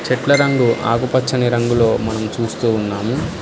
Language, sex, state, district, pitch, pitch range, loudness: Telugu, male, Telangana, Hyderabad, 120 Hz, 115-130 Hz, -17 LUFS